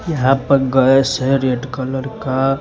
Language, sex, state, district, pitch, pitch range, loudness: Hindi, male, Bihar, West Champaran, 135 Hz, 130-135 Hz, -16 LUFS